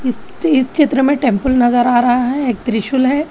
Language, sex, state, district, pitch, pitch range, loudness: Hindi, female, Telangana, Hyderabad, 255 Hz, 245-275 Hz, -14 LUFS